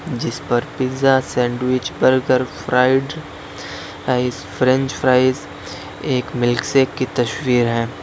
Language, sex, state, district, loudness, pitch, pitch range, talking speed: Hindi, male, Uttar Pradesh, Lalitpur, -18 LUFS, 130 Hz, 125-130 Hz, 105 wpm